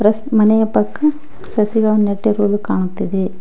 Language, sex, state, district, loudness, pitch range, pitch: Kannada, female, Karnataka, Koppal, -16 LUFS, 205-220 Hz, 215 Hz